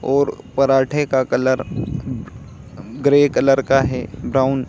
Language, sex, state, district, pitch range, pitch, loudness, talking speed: Hindi, male, Bihar, Samastipur, 130-140 Hz, 135 Hz, -18 LUFS, 130 wpm